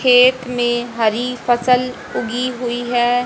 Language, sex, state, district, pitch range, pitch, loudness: Hindi, female, Haryana, Jhajjar, 240-250 Hz, 245 Hz, -17 LUFS